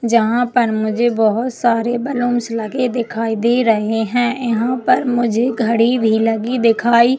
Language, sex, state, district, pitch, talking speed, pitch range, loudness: Hindi, female, Chhattisgarh, Jashpur, 235 Hz, 160 wpm, 225-245 Hz, -16 LUFS